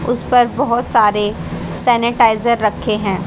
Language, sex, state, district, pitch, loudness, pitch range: Hindi, female, Haryana, Jhajjar, 235 Hz, -15 LUFS, 210-245 Hz